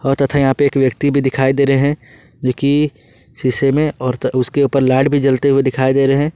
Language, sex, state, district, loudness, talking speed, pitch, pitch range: Hindi, male, Jharkhand, Ranchi, -15 LUFS, 245 wpm, 135 Hz, 130-140 Hz